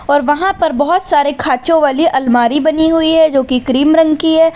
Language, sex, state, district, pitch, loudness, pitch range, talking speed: Hindi, female, Uttar Pradesh, Lalitpur, 315 Hz, -12 LUFS, 280-325 Hz, 225 wpm